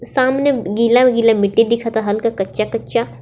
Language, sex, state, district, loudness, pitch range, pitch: Bhojpuri, female, Jharkhand, Palamu, -16 LUFS, 215-240 Hz, 230 Hz